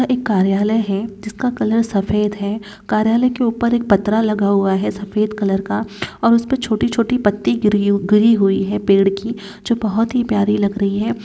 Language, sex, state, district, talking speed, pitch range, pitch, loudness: Hindi, female, Bihar, Saran, 190 wpm, 200-230 Hz, 210 Hz, -17 LUFS